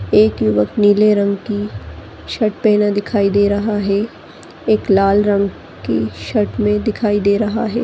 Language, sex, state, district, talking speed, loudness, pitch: Hindi, female, Chhattisgarh, Sarguja, 160 wpm, -16 LUFS, 205 Hz